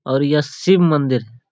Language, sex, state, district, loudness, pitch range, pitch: Hindi, male, Bihar, Jamui, -17 LUFS, 130-155 Hz, 145 Hz